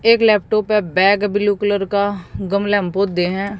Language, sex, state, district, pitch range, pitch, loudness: Hindi, female, Haryana, Jhajjar, 195-205 Hz, 205 Hz, -17 LUFS